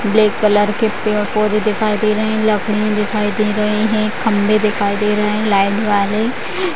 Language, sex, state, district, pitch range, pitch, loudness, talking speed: Hindi, female, Bihar, Vaishali, 210-215 Hz, 210 Hz, -16 LUFS, 170 wpm